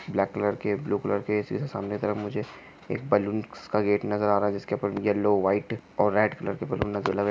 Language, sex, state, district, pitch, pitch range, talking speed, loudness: Hindi, male, Maharashtra, Chandrapur, 105 Hz, 100-105 Hz, 230 wpm, -27 LUFS